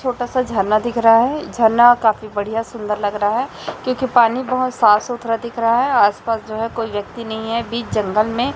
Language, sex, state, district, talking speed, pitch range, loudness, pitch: Hindi, male, Chhattisgarh, Raipur, 225 wpm, 215-245 Hz, -17 LUFS, 230 Hz